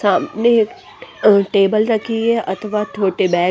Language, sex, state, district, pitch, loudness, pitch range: Hindi, female, Bihar, West Champaran, 210 Hz, -16 LUFS, 195-225 Hz